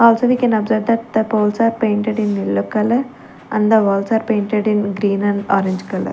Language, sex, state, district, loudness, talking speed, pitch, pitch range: English, female, Chandigarh, Chandigarh, -17 LUFS, 215 wpm, 215 Hz, 205-225 Hz